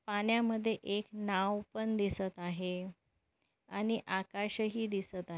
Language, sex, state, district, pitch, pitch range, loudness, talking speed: Marathi, female, Maharashtra, Nagpur, 205 Hz, 190-220 Hz, -36 LUFS, 125 wpm